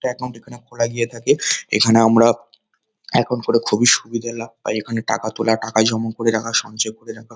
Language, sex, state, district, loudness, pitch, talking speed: Bengali, male, West Bengal, Kolkata, -18 LUFS, 115 Hz, 185 wpm